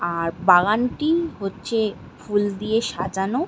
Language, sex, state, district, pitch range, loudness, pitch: Bengali, female, West Bengal, Malda, 190-235 Hz, -22 LUFS, 205 Hz